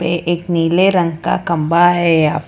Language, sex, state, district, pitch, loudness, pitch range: Hindi, female, Karnataka, Bangalore, 170 Hz, -14 LUFS, 165-175 Hz